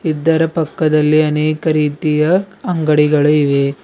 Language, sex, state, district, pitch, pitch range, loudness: Kannada, male, Karnataka, Bidar, 155 Hz, 150-160 Hz, -14 LUFS